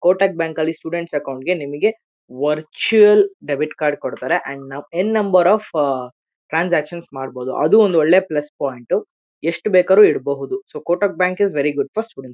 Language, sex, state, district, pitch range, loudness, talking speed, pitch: Kannada, male, Karnataka, Shimoga, 145-195 Hz, -18 LUFS, 170 wpm, 165 Hz